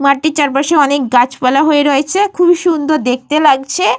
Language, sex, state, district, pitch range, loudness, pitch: Bengali, female, Jharkhand, Jamtara, 275-310 Hz, -12 LUFS, 290 Hz